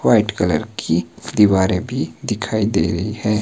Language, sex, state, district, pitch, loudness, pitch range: Hindi, male, Himachal Pradesh, Shimla, 105 Hz, -19 LUFS, 95-110 Hz